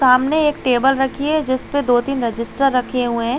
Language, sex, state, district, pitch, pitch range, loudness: Hindi, female, Chhattisgarh, Balrampur, 260 Hz, 245-280 Hz, -17 LUFS